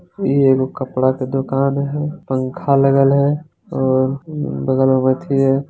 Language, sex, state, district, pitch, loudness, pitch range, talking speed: Hindi, male, Bihar, Jamui, 135 Hz, -17 LUFS, 130-140 Hz, 145 wpm